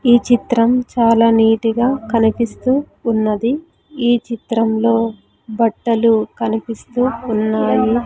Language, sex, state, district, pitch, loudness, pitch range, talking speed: Telugu, female, Andhra Pradesh, Sri Satya Sai, 230 Hz, -16 LUFS, 225-245 Hz, 90 wpm